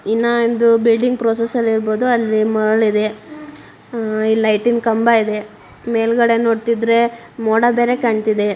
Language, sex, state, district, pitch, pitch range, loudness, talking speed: Kannada, female, Karnataka, Dharwad, 230 Hz, 220-235 Hz, -16 LUFS, 125 wpm